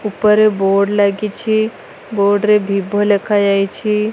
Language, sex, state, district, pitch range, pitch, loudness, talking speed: Odia, female, Odisha, Malkangiri, 200-215 Hz, 205 Hz, -15 LUFS, 100 wpm